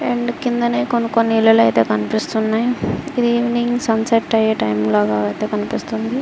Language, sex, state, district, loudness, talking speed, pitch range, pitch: Telugu, female, Andhra Pradesh, Srikakulam, -17 LUFS, 135 wpm, 210-240 Hz, 225 Hz